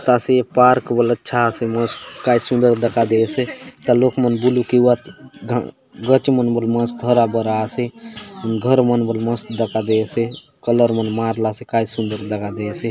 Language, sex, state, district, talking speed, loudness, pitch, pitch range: Halbi, male, Chhattisgarh, Bastar, 165 wpm, -18 LUFS, 120 Hz, 115-125 Hz